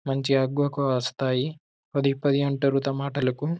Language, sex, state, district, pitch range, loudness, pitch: Telugu, male, Telangana, Karimnagar, 135-140 Hz, -25 LUFS, 140 Hz